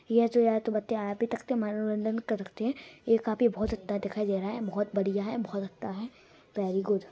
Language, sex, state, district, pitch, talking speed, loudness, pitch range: Hindi, male, Bihar, East Champaran, 215 Hz, 200 wpm, -30 LUFS, 200-230 Hz